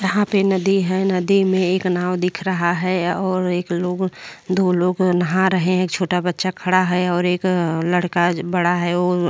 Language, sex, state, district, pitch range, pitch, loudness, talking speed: Hindi, female, Uttar Pradesh, Jyotiba Phule Nagar, 180-185 Hz, 180 Hz, -19 LUFS, 185 wpm